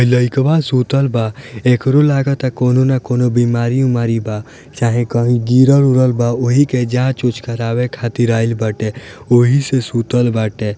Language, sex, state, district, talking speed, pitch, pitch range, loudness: Bhojpuri, male, Bihar, Gopalganj, 145 wpm, 125 Hz, 115-130 Hz, -15 LUFS